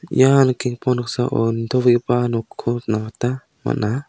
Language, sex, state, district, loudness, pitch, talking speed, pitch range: Garo, male, Meghalaya, South Garo Hills, -19 LUFS, 120 Hz, 115 wpm, 115-130 Hz